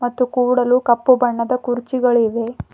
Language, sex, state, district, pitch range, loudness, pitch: Kannada, female, Karnataka, Bidar, 240-250 Hz, -17 LUFS, 245 Hz